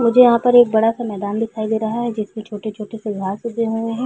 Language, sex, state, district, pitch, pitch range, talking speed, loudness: Hindi, female, Chhattisgarh, Balrampur, 225 Hz, 215-235 Hz, 265 wpm, -18 LUFS